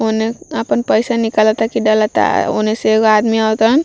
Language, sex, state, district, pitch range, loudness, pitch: Bhojpuri, female, Bihar, Gopalganj, 215-225 Hz, -14 LUFS, 220 Hz